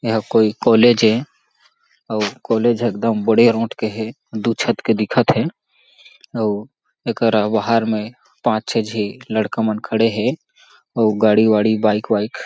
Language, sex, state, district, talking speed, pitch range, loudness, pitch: Chhattisgarhi, male, Chhattisgarh, Jashpur, 155 wpm, 110-115 Hz, -18 LUFS, 110 Hz